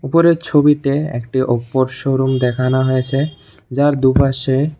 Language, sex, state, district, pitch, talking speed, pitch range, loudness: Bengali, male, Tripura, West Tripura, 135 Hz, 115 wpm, 130-145 Hz, -16 LUFS